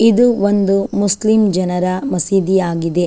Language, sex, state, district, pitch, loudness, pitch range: Kannada, female, Karnataka, Chamarajanagar, 195 Hz, -15 LUFS, 185-205 Hz